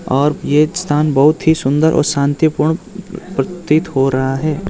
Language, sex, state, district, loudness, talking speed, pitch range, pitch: Hindi, male, Arunachal Pradesh, Lower Dibang Valley, -15 LUFS, 155 wpm, 140-160 Hz, 155 Hz